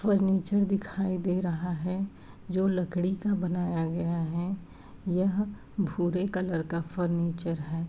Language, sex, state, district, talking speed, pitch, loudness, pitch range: Hindi, female, Uttar Pradesh, Varanasi, 130 wpm, 180 Hz, -30 LUFS, 170-195 Hz